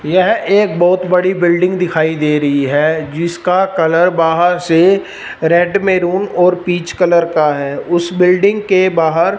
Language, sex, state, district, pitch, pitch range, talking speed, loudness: Hindi, male, Punjab, Fazilka, 175 Hz, 160-185 Hz, 160 wpm, -13 LUFS